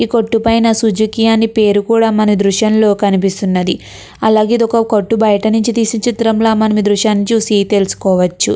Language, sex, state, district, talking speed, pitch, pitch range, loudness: Telugu, female, Andhra Pradesh, Krishna, 135 wpm, 220 Hz, 205-225 Hz, -12 LUFS